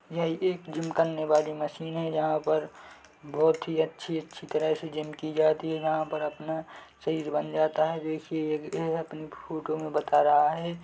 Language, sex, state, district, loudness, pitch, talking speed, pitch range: Hindi, male, Chhattisgarh, Bilaspur, -29 LUFS, 155 Hz, 185 wpm, 155-160 Hz